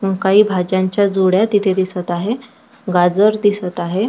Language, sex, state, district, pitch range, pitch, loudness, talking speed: Marathi, female, Maharashtra, Chandrapur, 185-205 Hz, 190 Hz, -16 LUFS, 130 wpm